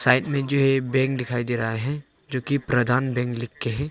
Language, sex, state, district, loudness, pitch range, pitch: Hindi, male, Arunachal Pradesh, Longding, -24 LUFS, 120-135 Hz, 130 Hz